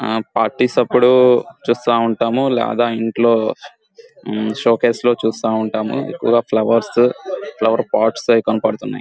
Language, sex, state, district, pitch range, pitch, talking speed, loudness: Telugu, male, Andhra Pradesh, Guntur, 110-120 Hz, 115 Hz, 125 wpm, -16 LUFS